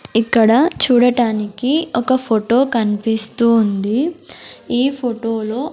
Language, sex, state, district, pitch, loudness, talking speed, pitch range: Telugu, female, Andhra Pradesh, Sri Satya Sai, 235 Hz, -16 LUFS, 95 wpm, 220-260 Hz